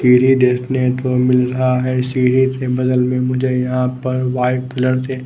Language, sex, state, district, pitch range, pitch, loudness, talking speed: Hindi, male, Odisha, Nuapada, 125-130 Hz, 125 Hz, -16 LUFS, 180 wpm